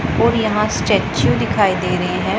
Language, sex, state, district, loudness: Hindi, female, Punjab, Pathankot, -17 LUFS